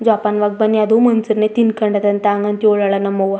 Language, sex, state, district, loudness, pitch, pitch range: Kannada, female, Karnataka, Chamarajanagar, -15 LUFS, 210 Hz, 205-220 Hz